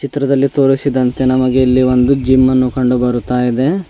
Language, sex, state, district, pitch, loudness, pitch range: Kannada, male, Karnataka, Bidar, 130 Hz, -13 LUFS, 125-135 Hz